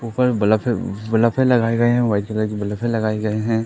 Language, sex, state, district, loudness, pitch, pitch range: Hindi, male, Madhya Pradesh, Katni, -19 LUFS, 115 Hz, 110-120 Hz